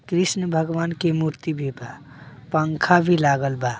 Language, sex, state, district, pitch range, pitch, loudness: Bhojpuri, male, Bihar, Muzaffarpur, 140-170 Hz, 155 Hz, -21 LUFS